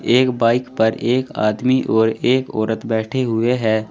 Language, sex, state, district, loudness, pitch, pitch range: Hindi, male, Uttar Pradesh, Saharanpur, -18 LUFS, 115 Hz, 110-125 Hz